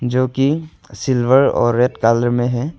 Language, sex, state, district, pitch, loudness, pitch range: Hindi, male, Arunachal Pradesh, Longding, 125 Hz, -16 LUFS, 120-135 Hz